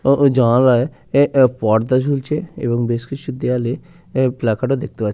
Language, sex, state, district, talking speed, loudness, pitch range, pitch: Bengali, male, West Bengal, Purulia, 185 wpm, -17 LUFS, 120-140 Hz, 130 Hz